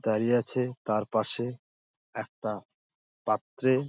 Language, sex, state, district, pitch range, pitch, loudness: Bengali, male, West Bengal, Dakshin Dinajpur, 115-130 Hz, 120 Hz, -30 LUFS